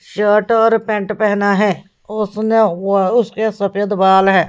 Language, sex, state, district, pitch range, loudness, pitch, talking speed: Hindi, female, Haryana, Rohtak, 195-220 Hz, -15 LUFS, 210 Hz, 145 wpm